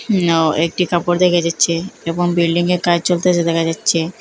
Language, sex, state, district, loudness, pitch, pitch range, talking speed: Bengali, female, Assam, Hailakandi, -16 LUFS, 175 Hz, 165-180 Hz, 155 wpm